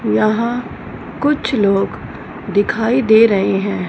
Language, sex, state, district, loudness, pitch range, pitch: Hindi, female, Punjab, Fazilka, -15 LUFS, 195-235 Hz, 215 Hz